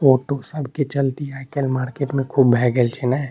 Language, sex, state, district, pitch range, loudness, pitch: Maithili, male, Bihar, Saharsa, 130-140 Hz, -21 LUFS, 135 Hz